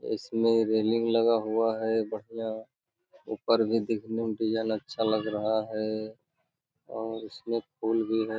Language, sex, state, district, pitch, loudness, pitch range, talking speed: Hindi, male, Bihar, Jamui, 110 Hz, -29 LUFS, 110-115 Hz, 145 wpm